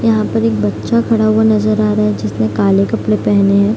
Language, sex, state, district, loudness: Hindi, female, Bihar, Araria, -13 LUFS